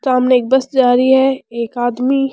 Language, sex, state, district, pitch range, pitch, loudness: Rajasthani, female, Rajasthan, Churu, 245-265 Hz, 255 Hz, -14 LUFS